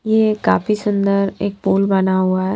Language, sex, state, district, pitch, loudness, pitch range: Hindi, female, Himachal Pradesh, Shimla, 200 Hz, -17 LUFS, 195-210 Hz